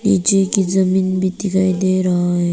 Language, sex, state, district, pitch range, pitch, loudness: Hindi, female, Arunachal Pradesh, Papum Pare, 185-190 Hz, 185 Hz, -16 LUFS